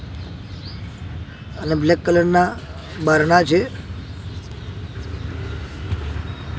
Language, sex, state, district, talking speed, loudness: Gujarati, male, Gujarat, Gandhinagar, 55 wpm, -20 LUFS